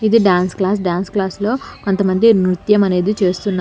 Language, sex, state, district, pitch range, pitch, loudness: Telugu, female, Telangana, Hyderabad, 185-210 Hz, 195 Hz, -16 LUFS